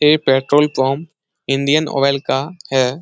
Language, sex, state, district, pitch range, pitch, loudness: Hindi, male, Bihar, Lakhisarai, 135-155 Hz, 140 Hz, -16 LUFS